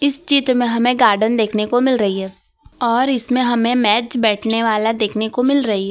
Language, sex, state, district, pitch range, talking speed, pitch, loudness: Hindi, female, Gujarat, Valsad, 215-250 Hz, 215 wpm, 235 Hz, -16 LUFS